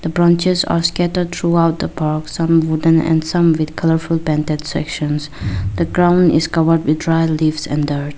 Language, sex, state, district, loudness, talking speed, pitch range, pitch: English, female, Arunachal Pradesh, Lower Dibang Valley, -16 LUFS, 175 wpm, 155-170 Hz, 160 Hz